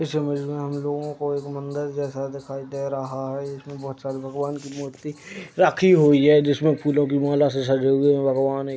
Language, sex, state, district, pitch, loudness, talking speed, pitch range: Hindi, male, Uttar Pradesh, Deoria, 140 Hz, -22 LUFS, 220 wpm, 135-145 Hz